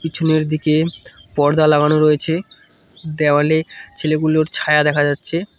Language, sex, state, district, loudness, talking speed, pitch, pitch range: Bengali, male, West Bengal, Cooch Behar, -16 LUFS, 105 wpm, 155 Hz, 150-160 Hz